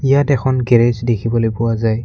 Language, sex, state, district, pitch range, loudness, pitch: Assamese, male, Assam, Kamrup Metropolitan, 115-130 Hz, -15 LUFS, 120 Hz